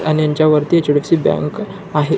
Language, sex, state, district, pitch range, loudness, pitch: Marathi, male, Maharashtra, Nagpur, 150-170 Hz, -15 LUFS, 155 Hz